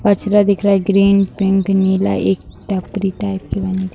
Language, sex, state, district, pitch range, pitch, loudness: Hindi, female, Bihar, Sitamarhi, 190-200 Hz, 195 Hz, -16 LUFS